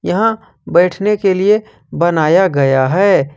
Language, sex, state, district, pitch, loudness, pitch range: Hindi, male, Jharkhand, Ranchi, 185 Hz, -13 LUFS, 155-205 Hz